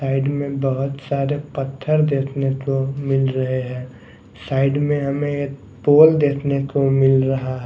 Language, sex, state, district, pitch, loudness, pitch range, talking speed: Hindi, male, Maharashtra, Mumbai Suburban, 135 Hz, -19 LUFS, 135-140 Hz, 155 wpm